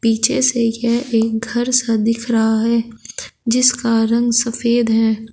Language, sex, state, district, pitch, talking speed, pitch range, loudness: Hindi, female, Uttar Pradesh, Shamli, 230 Hz, 145 wpm, 225-240 Hz, -16 LUFS